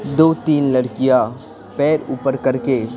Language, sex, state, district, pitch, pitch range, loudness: Hindi, male, Bihar, Patna, 135 Hz, 130-150 Hz, -17 LUFS